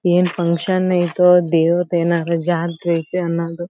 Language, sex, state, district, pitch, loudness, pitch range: Kannada, female, Karnataka, Belgaum, 175 Hz, -17 LUFS, 170-180 Hz